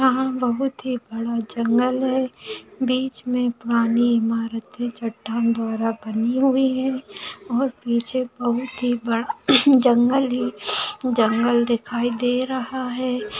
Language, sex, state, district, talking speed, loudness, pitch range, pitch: Hindi, female, Maharashtra, Aurangabad, 120 wpm, -22 LUFS, 235-260 Hz, 245 Hz